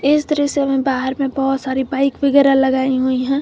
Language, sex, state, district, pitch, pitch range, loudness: Hindi, female, Jharkhand, Garhwa, 270 Hz, 265-280 Hz, -17 LUFS